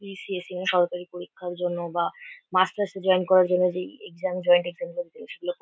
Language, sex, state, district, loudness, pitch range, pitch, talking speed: Bengali, female, West Bengal, Kolkata, -25 LUFS, 180-205 Hz, 185 Hz, 180 wpm